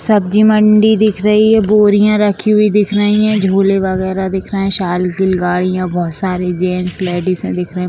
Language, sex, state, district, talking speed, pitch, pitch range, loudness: Hindi, female, Bihar, Vaishali, 190 wpm, 195 Hz, 185-210 Hz, -12 LUFS